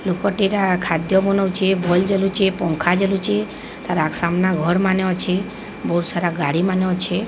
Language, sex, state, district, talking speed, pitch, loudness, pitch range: Odia, female, Odisha, Sambalpur, 155 wpm, 185 Hz, -19 LUFS, 175-195 Hz